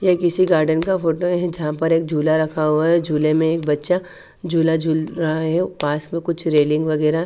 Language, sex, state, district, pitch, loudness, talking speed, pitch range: Hindi, female, Haryana, Charkhi Dadri, 160 Hz, -19 LUFS, 225 wpm, 155-175 Hz